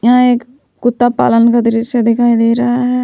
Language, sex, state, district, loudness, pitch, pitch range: Hindi, female, Jharkhand, Palamu, -12 LUFS, 240 Hz, 230-245 Hz